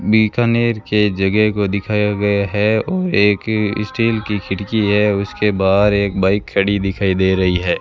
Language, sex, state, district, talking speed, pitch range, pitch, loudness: Hindi, male, Rajasthan, Bikaner, 170 wpm, 100-110 Hz, 105 Hz, -16 LUFS